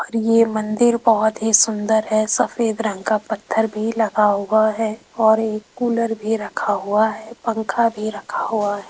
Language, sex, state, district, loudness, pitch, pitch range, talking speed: Hindi, female, Rajasthan, Jaipur, -19 LUFS, 220 Hz, 215-225 Hz, 175 wpm